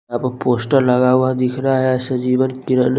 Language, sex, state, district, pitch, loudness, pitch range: Hindi, male, Bihar, West Champaran, 130 Hz, -17 LUFS, 125-130 Hz